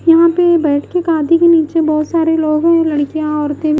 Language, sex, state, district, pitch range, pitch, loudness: Hindi, female, Bihar, West Champaran, 305-335 Hz, 320 Hz, -13 LUFS